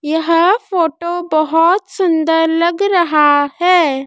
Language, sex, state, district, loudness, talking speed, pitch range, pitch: Hindi, female, Madhya Pradesh, Dhar, -13 LUFS, 105 wpm, 315-355 Hz, 335 Hz